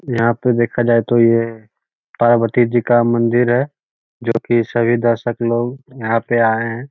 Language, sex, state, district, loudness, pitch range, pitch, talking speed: Magahi, male, Bihar, Lakhisarai, -16 LUFS, 115-120 Hz, 120 Hz, 180 wpm